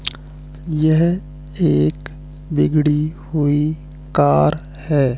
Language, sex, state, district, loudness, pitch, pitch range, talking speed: Hindi, male, Madhya Pradesh, Katni, -18 LUFS, 145 Hz, 145-155 Hz, 70 wpm